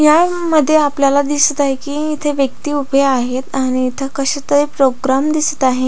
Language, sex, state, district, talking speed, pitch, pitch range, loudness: Marathi, female, Maharashtra, Pune, 185 wpm, 285 Hz, 270-300 Hz, -15 LUFS